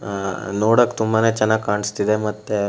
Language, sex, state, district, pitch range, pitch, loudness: Kannada, male, Karnataka, Shimoga, 100-110 Hz, 105 Hz, -20 LUFS